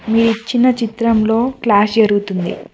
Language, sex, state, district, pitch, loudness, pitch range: Telugu, female, Telangana, Mahabubabad, 225 Hz, -15 LUFS, 215-230 Hz